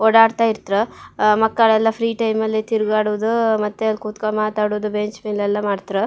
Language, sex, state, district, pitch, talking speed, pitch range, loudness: Kannada, female, Karnataka, Shimoga, 215 Hz, 130 wpm, 210-225 Hz, -19 LUFS